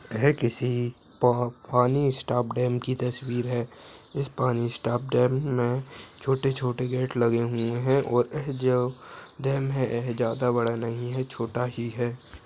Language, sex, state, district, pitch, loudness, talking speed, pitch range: Hindi, male, Bihar, Madhepura, 125 Hz, -27 LUFS, 140 wpm, 120-130 Hz